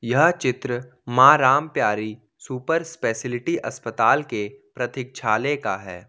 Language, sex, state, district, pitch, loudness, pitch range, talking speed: Hindi, male, Jharkhand, Ranchi, 125 Hz, -21 LUFS, 110-140 Hz, 120 wpm